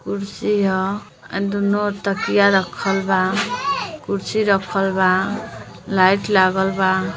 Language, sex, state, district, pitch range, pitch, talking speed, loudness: Bhojpuri, female, Uttar Pradesh, Deoria, 190-200 Hz, 195 Hz, 135 wpm, -19 LUFS